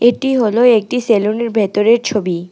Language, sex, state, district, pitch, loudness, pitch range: Bengali, female, West Bengal, Alipurduar, 230 Hz, -14 LUFS, 210-240 Hz